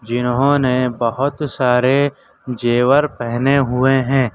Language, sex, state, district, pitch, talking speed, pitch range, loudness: Hindi, male, Uttar Pradesh, Lucknow, 130 Hz, 95 wpm, 125-140 Hz, -16 LUFS